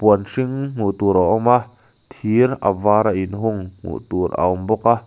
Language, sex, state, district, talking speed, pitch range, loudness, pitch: Mizo, male, Mizoram, Aizawl, 200 wpm, 100-120 Hz, -19 LUFS, 110 Hz